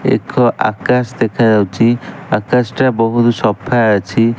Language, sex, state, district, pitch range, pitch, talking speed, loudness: Odia, male, Odisha, Malkangiri, 110-125 Hz, 115 Hz, 125 wpm, -14 LUFS